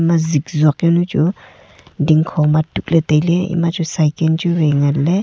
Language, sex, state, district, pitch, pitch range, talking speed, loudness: Wancho, female, Arunachal Pradesh, Longding, 160 Hz, 150-170 Hz, 195 wpm, -16 LUFS